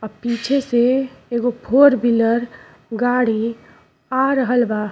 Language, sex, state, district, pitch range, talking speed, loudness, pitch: Bhojpuri, female, Uttar Pradesh, Ghazipur, 230-260 Hz, 120 wpm, -18 LUFS, 240 Hz